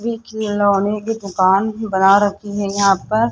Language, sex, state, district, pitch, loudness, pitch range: Hindi, female, Rajasthan, Jaipur, 205 Hz, -17 LUFS, 195-220 Hz